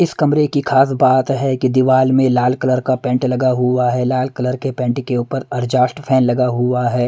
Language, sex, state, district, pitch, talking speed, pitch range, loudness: Hindi, male, Punjab, Pathankot, 130 Hz, 230 wpm, 125-135 Hz, -16 LUFS